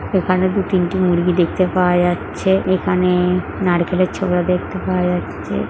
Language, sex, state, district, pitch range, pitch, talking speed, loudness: Bengali, female, West Bengal, Jhargram, 180-185 Hz, 180 Hz, 125 wpm, -17 LUFS